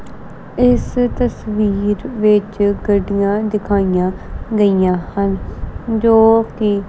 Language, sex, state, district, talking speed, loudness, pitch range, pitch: Punjabi, female, Punjab, Kapurthala, 80 wpm, -16 LUFS, 200-225 Hz, 205 Hz